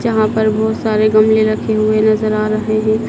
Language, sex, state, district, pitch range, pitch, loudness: Hindi, male, Madhya Pradesh, Dhar, 215-220 Hz, 215 Hz, -14 LUFS